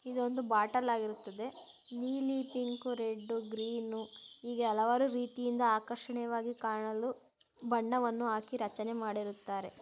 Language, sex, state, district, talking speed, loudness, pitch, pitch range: Kannada, female, Karnataka, Mysore, 105 wpm, -36 LUFS, 235 Hz, 220-245 Hz